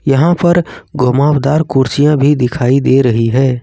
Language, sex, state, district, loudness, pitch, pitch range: Hindi, male, Jharkhand, Ranchi, -12 LUFS, 140 Hz, 130-150 Hz